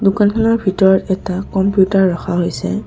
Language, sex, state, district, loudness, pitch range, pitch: Assamese, female, Assam, Kamrup Metropolitan, -15 LUFS, 190-205 Hz, 190 Hz